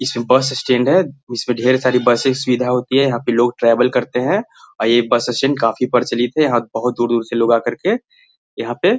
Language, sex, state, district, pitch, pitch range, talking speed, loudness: Hindi, male, Bihar, Gaya, 125 Hz, 120-130 Hz, 225 wpm, -16 LUFS